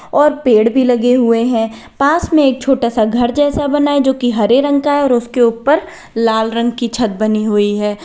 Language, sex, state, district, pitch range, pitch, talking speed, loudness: Hindi, female, Uttar Pradesh, Lalitpur, 225-285 Hz, 245 Hz, 225 wpm, -13 LUFS